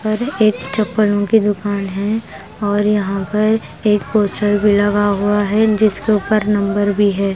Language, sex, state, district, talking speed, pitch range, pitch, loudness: Hindi, female, Himachal Pradesh, Shimla, 165 wpm, 205-215 Hz, 205 Hz, -16 LUFS